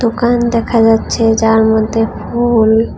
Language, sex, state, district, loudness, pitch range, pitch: Bengali, female, Tripura, West Tripura, -12 LUFS, 225-235 Hz, 225 Hz